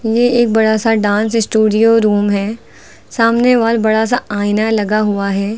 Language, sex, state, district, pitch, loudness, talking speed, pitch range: Hindi, female, Uttar Pradesh, Lucknow, 220 Hz, -13 LUFS, 170 wpm, 205-230 Hz